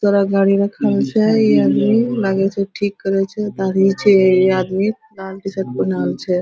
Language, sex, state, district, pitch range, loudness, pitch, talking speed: Hindi, female, Bihar, Araria, 190-205 Hz, -16 LUFS, 195 Hz, 150 wpm